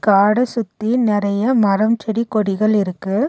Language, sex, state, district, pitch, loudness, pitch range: Tamil, female, Tamil Nadu, Nilgiris, 215 Hz, -17 LUFS, 200-230 Hz